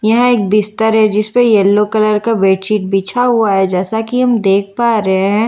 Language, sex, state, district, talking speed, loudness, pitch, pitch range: Hindi, female, Bihar, Katihar, 220 wpm, -12 LUFS, 215 Hz, 195-230 Hz